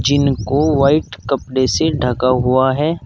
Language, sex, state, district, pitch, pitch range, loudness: Hindi, male, Uttar Pradesh, Saharanpur, 135 Hz, 130-145 Hz, -16 LUFS